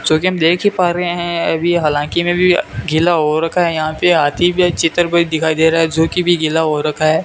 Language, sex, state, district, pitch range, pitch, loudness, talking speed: Hindi, male, Rajasthan, Bikaner, 155-175 Hz, 165 Hz, -14 LUFS, 290 wpm